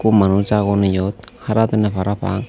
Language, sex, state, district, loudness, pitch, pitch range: Chakma, male, Tripura, Unakoti, -17 LUFS, 100 Hz, 95-110 Hz